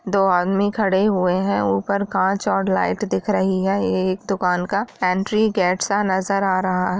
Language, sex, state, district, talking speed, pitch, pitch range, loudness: Hindi, female, Bihar, Jamui, 205 wpm, 190 Hz, 185-200 Hz, -20 LUFS